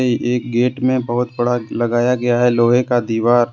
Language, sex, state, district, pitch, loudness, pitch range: Hindi, male, Jharkhand, Deoghar, 120 Hz, -17 LUFS, 120-125 Hz